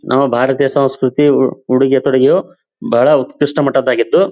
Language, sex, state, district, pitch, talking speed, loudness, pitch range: Kannada, male, Karnataka, Bijapur, 135 Hz, 140 wpm, -13 LUFS, 130-140 Hz